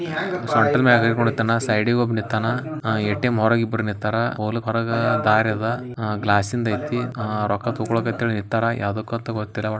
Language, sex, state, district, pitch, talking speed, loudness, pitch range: Kannada, male, Karnataka, Bijapur, 115 Hz, 35 wpm, -21 LUFS, 110-120 Hz